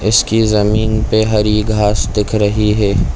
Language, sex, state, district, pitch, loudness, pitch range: Hindi, male, Chhattisgarh, Bilaspur, 105 Hz, -14 LUFS, 105-110 Hz